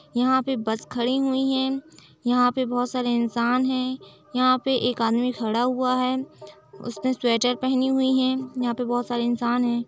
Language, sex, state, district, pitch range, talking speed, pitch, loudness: Hindi, female, Uttar Pradesh, Etah, 240-260 Hz, 180 wpm, 250 Hz, -24 LUFS